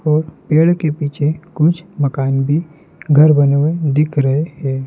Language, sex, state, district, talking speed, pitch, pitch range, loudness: Hindi, male, Madhya Pradesh, Dhar, 160 wpm, 150 Hz, 140-160 Hz, -15 LUFS